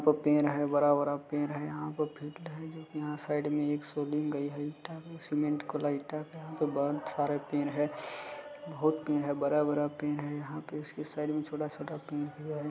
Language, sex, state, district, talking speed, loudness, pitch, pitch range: Hindi, male, Bihar, Madhepura, 175 wpm, -33 LUFS, 150 Hz, 145-155 Hz